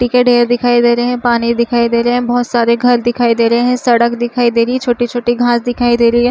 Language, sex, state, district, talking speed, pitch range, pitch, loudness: Chhattisgarhi, female, Chhattisgarh, Rajnandgaon, 285 wpm, 235-245 Hz, 240 Hz, -12 LUFS